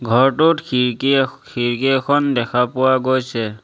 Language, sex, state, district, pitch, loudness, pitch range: Assamese, male, Assam, Sonitpur, 130 Hz, -17 LUFS, 120-135 Hz